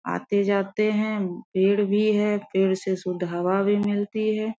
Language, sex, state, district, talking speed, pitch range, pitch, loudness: Hindi, female, Jharkhand, Sahebganj, 155 wpm, 190-215 Hz, 205 Hz, -24 LUFS